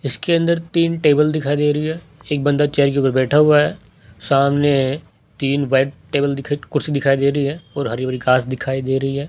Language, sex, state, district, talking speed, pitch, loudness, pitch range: Hindi, male, Rajasthan, Jaipur, 220 wpm, 140 Hz, -18 LUFS, 135-150 Hz